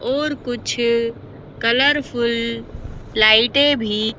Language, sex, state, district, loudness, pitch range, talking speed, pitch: Hindi, female, Madhya Pradesh, Bhopal, -17 LUFS, 145-245 Hz, 70 wpm, 230 Hz